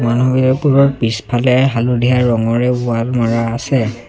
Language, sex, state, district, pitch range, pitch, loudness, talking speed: Assamese, male, Assam, Sonitpur, 115-130 Hz, 120 Hz, -14 LUFS, 90 wpm